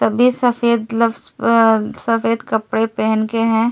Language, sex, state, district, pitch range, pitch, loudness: Hindi, female, Delhi, New Delhi, 225-235 Hz, 230 Hz, -17 LUFS